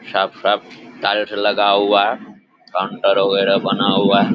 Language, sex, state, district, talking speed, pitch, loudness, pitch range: Hindi, male, Bihar, Samastipur, 150 wpm, 100 Hz, -17 LUFS, 100-105 Hz